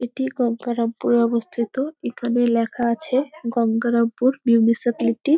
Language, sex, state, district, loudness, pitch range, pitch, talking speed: Bengali, female, West Bengal, Dakshin Dinajpur, -21 LUFS, 235-255 Hz, 240 Hz, 100 wpm